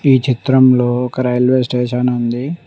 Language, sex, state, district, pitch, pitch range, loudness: Telugu, male, Telangana, Mahabubabad, 125 Hz, 125-130 Hz, -14 LUFS